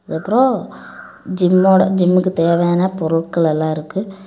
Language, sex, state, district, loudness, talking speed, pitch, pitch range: Tamil, female, Tamil Nadu, Kanyakumari, -16 LUFS, 100 wpm, 180 Hz, 165-190 Hz